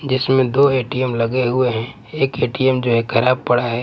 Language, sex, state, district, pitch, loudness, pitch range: Hindi, male, Punjab, Pathankot, 130 Hz, -17 LUFS, 120-130 Hz